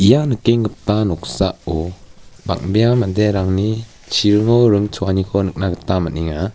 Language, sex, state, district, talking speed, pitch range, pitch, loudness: Garo, male, Meghalaya, West Garo Hills, 100 wpm, 95-110 Hz, 100 Hz, -17 LUFS